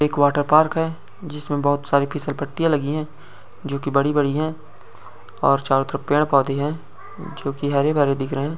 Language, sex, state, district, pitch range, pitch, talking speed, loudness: Hindi, male, Uttar Pradesh, Ghazipur, 140-155 Hz, 145 Hz, 200 wpm, -21 LUFS